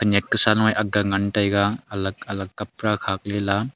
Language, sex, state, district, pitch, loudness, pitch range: Wancho, male, Arunachal Pradesh, Longding, 100 Hz, -21 LUFS, 100-105 Hz